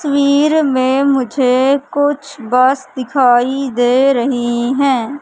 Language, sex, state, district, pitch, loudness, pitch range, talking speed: Hindi, female, Madhya Pradesh, Katni, 265 Hz, -14 LUFS, 250-280 Hz, 105 wpm